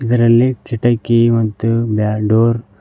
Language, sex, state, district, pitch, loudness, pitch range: Kannada, male, Karnataka, Koppal, 115 Hz, -14 LUFS, 110-120 Hz